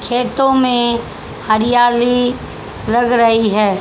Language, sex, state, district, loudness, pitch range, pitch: Hindi, female, Haryana, Jhajjar, -14 LUFS, 225-245 Hz, 240 Hz